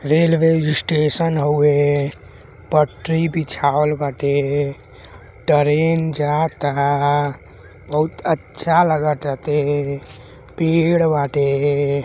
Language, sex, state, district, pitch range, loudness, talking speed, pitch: Hindi, male, Uttar Pradesh, Deoria, 140-155 Hz, -18 LUFS, 65 wpm, 145 Hz